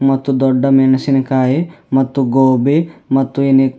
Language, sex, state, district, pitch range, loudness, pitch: Kannada, male, Karnataka, Bidar, 130-135 Hz, -14 LUFS, 135 Hz